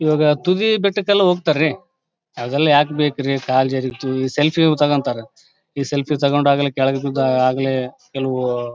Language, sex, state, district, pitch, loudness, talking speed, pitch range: Kannada, male, Karnataka, Bellary, 140 Hz, -18 LUFS, 145 wpm, 130-155 Hz